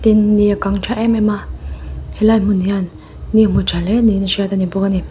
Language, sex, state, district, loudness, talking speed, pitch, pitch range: Mizo, female, Mizoram, Aizawl, -15 LUFS, 245 wpm, 200 Hz, 185-215 Hz